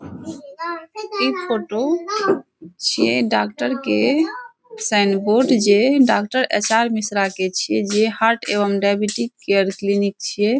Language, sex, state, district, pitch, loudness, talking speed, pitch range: Maithili, female, Bihar, Saharsa, 225 Hz, -19 LUFS, 120 wpm, 200-280 Hz